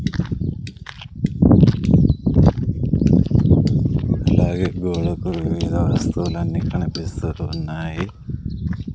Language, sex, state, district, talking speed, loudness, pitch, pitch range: Telugu, male, Andhra Pradesh, Sri Satya Sai, 40 wpm, -19 LUFS, 85 Hz, 85-90 Hz